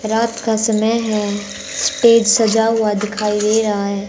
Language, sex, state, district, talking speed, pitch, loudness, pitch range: Hindi, male, Haryana, Jhajjar, 160 wpm, 220 Hz, -16 LUFS, 210-230 Hz